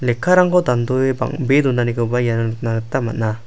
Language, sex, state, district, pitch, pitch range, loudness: Garo, male, Meghalaya, South Garo Hills, 120 Hz, 115-130 Hz, -18 LUFS